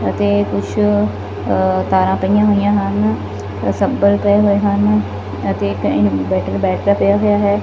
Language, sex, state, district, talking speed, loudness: Punjabi, female, Punjab, Fazilka, 140 wpm, -15 LUFS